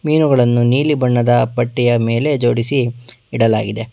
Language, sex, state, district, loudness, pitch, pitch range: Kannada, male, Karnataka, Bangalore, -15 LUFS, 120 Hz, 115-130 Hz